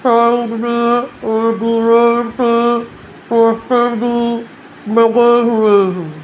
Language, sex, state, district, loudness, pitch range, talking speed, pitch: Hindi, female, Rajasthan, Jaipur, -13 LUFS, 230-240 Hz, 95 wpm, 235 Hz